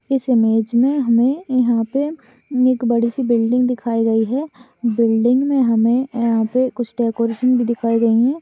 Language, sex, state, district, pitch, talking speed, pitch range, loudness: Hindi, female, Maharashtra, Sindhudurg, 240 Hz, 170 wpm, 230-255 Hz, -17 LUFS